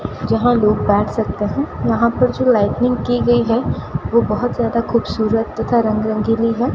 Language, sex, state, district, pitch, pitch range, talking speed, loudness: Hindi, female, Rajasthan, Bikaner, 230 Hz, 220-240 Hz, 180 wpm, -17 LUFS